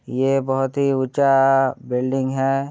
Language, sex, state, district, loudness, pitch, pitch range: Hindi, male, Bihar, Muzaffarpur, -19 LUFS, 135 Hz, 130-135 Hz